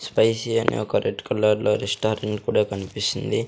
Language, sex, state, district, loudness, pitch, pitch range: Telugu, male, Andhra Pradesh, Sri Satya Sai, -23 LUFS, 105 Hz, 105-110 Hz